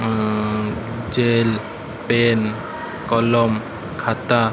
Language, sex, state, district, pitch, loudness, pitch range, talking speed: Odia, male, Odisha, Malkangiri, 115 Hz, -20 LUFS, 110-115 Hz, 65 wpm